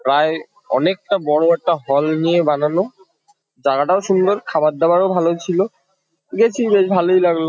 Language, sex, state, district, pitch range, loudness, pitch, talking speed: Bengali, male, West Bengal, Kolkata, 160-190 Hz, -17 LUFS, 175 Hz, 135 wpm